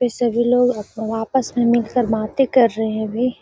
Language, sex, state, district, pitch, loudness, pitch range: Hindi, female, Bihar, Gaya, 235 Hz, -19 LUFS, 220-245 Hz